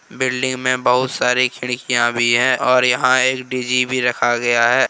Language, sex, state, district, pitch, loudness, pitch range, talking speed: Hindi, male, Jharkhand, Deoghar, 125 Hz, -16 LUFS, 125-130 Hz, 170 wpm